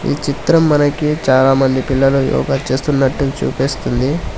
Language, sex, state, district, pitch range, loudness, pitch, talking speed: Telugu, male, Telangana, Hyderabad, 135-145 Hz, -15 LUFS, 135 Hz, 110 wpm